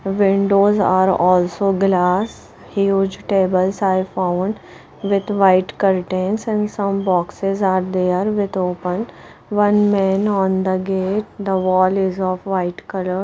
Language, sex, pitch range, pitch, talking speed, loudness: English, female, 185-200 Hz, 190 Hz, 130 wpm, -18 LUFS